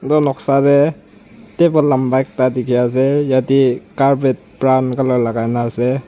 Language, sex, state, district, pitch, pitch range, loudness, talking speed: Nagamese, male, Nagaland, Dimapur, 130 Hz, 125-140 Hz, -15 LUFS, 150 wpm